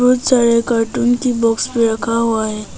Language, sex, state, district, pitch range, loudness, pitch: Hindi, female, Arunachal Pradesh, Papum Pare, 225-245 Hz, -15 LUFS, 230 Hz